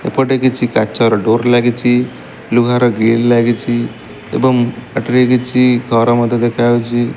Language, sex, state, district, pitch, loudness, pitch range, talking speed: Odia, male, Odisha, Malkangiri, 120 Hz, -13 LUFS, 115-125 Hz, 115 wpm